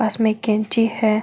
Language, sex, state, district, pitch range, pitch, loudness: Marwari, female, Rajasthan, Nagaur, 215-225 Hz, 220 Hz, -18 LUFS